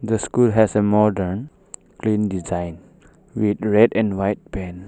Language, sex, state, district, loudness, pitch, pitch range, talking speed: English, male, Arunachal Pradesh, Papum Pare, -20 LUFS, 105 Hz, 95-110 Hz, 145 wpm